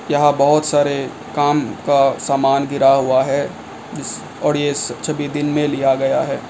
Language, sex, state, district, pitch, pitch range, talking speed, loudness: Hindi, male, Assam, Kamrup Metropolitan, 140 Hz, 135-145 Hz, 155 wpm, -17 LUFS